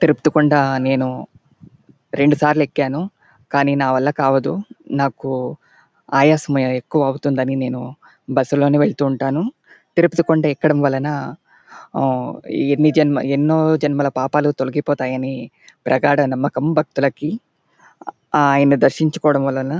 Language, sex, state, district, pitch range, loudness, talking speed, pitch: Telugu, male, Andhra Pradesh, Chittoor, 135-150 Hz, -18 LUFS, 105 wpm, 145 Hz